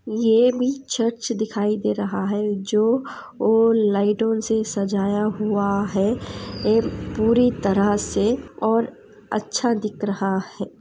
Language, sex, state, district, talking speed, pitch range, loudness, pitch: Hindi, female, Andhra Pradesh, Anantapur, 140 wpm, 205-230 Hz, -21 LUFS, 215 Hz